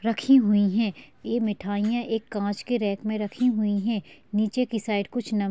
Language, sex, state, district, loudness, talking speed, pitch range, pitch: Hindi, female, Chhattisgarh, Balrampur, -25 LUFS, 205 wpm, 205-230 Hz, 215 Hz